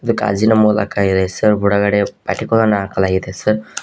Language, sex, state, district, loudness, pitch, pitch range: Kannada, male, Karnataka, Koppal, -15 LUFS, 105 Hz, 100-110 Hz